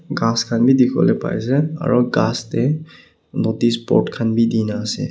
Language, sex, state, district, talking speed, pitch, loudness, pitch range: Nagamese, male, Nagaland, Kohima, 190 wpm, 120 Hz, -18 LUFS, 115-135 Hz